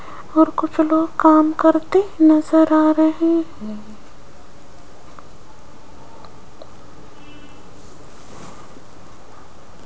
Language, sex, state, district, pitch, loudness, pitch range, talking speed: Hindi, female, Rajasthan, Jaipur, 315 Hz, -16 LUFS, 310-320 Hz, 55 wpm